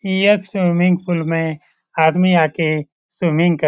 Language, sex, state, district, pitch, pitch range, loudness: Hindi, male, Bihar, Lakhisarai, 170 Hz, 160-180 Hz, -17 LUFS